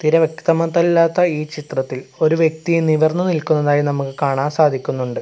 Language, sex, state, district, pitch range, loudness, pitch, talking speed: Malayalam, male, Kerala, Kasaragod, 145-165 Hz, -17 LUFS, 155 Hz, 125 wpm